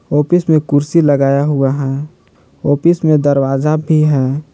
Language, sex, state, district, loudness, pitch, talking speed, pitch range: Hindi, male, Jharkhand, Palamu, -13 LUFS, 145 Hz, 145 wpm, 135-155 Hz